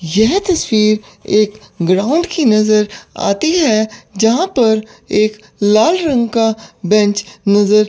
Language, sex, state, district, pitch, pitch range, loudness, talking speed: Hindi, male, Chandigarh, Chandigarh, 215 Hz, 205-235 Hz, -14 LUFS, 130 wpm